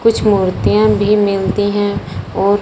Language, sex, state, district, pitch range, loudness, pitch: Hindi, female, Punjab, Fazilka, 200-210 Hz, -14 LUFS, 205 Hz